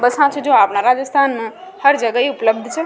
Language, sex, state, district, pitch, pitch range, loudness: Rajasthani, female, Rajasthan, Nagaur, 260 Hz, 230-285 Hz, -15 LUFS